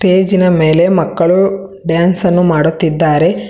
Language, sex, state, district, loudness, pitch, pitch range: Kannada, female, Karnataka, Bangalore, -11 LUFS, 175 Hz, 165-185 Hz